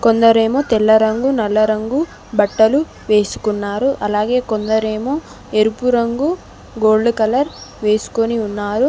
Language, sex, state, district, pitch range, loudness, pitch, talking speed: Telugu, female, Telangana, Mahabubabad, 215-250 Hz, -16 LUFS, 220 Hz, 100 wpm